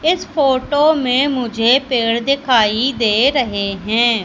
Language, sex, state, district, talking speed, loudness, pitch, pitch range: Hindi, female, Madhya Pradesh, Katni, 125 wpm, -15 LUFS, 255 Hz, 230-275 Hz